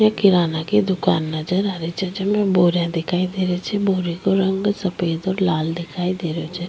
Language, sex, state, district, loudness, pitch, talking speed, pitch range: Rajasthani, female, Rajasthan, Nagaur, -20 LUFS, 180 Hz, 215 wpm, 170-195 Hz